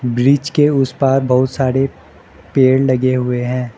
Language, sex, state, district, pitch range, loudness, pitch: Hindi, male, Arunachal Pradesh, Lower Dibang Valley, 125-135 Hz, -15 LUFS, 130 Hz